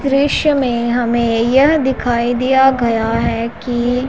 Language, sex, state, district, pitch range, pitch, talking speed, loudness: Hindi, female, Punjab, Pathankot, 235-265 Hz, 245 Hz, 130 wpm, -15 LUFS